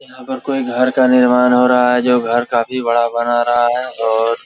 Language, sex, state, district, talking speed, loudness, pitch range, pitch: Hindi, male, Jharkhand, Jamtara, 240 wpm, -14 LUFS, 120-125 Hz, 125 Hz